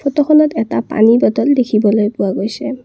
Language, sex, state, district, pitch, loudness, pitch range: Assamese, female, Assam, Kamrup Metropolitan, 230 Hz, -13 LUFS, 210-280 Hz